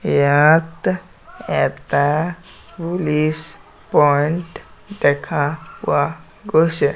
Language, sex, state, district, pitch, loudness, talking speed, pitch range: Assamese, male, Assam, Sonitpur, 155 Hz, -18 LUFS, 60 wpm, 145-165 Hz